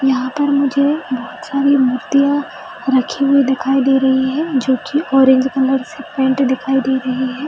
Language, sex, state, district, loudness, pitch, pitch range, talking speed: Hindi, female, Bihar, Jahanabad, -15 LUFS, 270 Hz, 265-285 Hz, 185 wpm